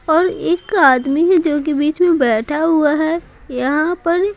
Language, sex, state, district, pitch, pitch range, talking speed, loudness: Hindi, female, Bihar, Patna, 315 Hz, 295-350 Hz, 180 wpm, -15 LUFS